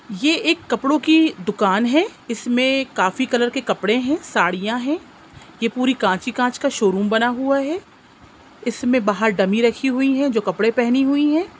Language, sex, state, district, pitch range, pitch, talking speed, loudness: Hindi, female, Bihar, Sitamarhi, 225-275 Hz, 250 Hz, 180 wpm, -19 LUFS